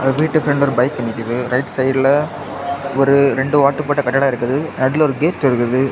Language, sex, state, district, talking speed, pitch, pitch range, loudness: Tamil, male, Tamil Nadu, Kanyakumari, 170 wpm, 135 Hz, 130-145 Hz, -16 LUFS